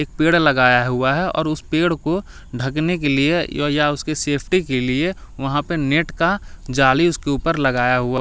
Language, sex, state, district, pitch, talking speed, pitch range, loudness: Hindi, male, Delhi, New Delhi, 145 Hz, 190 wpm, 135-165 Hz, -19 LUFS